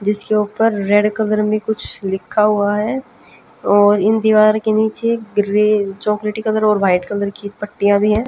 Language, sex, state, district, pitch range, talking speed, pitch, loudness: Hindi, female, Haryana, Jhajjar, 205-215 Hz, 175 wpm, 210 Hz, -16 LUFS